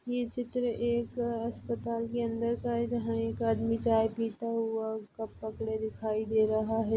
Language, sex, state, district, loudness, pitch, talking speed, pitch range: Hindi, female, Chhattisgarh, Jashpur, -32 LUFS, 230 Hz, 170 wpm, 220-235 Hz